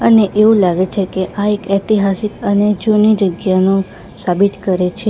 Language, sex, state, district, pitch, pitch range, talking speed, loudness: Gujarati, female, Gujarat, Valsad, 200 Hz, 190-210 Hz, 165 wpm, -14 LUFS